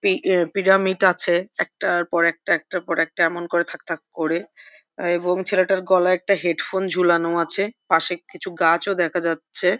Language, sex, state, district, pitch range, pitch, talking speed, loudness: Bengali, female, West Bengal, Jhargram, 170-190 Hz, 175 Hz, 170 wpm, -20 LUFS